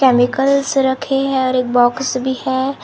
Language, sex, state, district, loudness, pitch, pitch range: Hindi, male, Maharashtra, Gondia, -16 LUFS, 260 Hz, 255-270 Hz